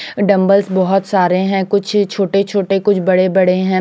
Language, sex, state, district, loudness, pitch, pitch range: Hindi, female, Chandigarh, Chandigarh, -14 LUFS, 195 Hz, 185-200 Hz